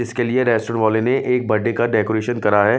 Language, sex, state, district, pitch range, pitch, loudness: Hindi, male, Bihar, West Champaran, 110-125 Hz, 115 Hz, -18 LUFS